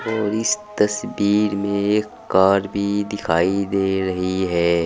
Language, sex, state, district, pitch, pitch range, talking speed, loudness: Hindi, male, Uttar Pradesh, Saharanpur, 100 Hz, 95-105 Hz, 135 wpm, -20 LUFS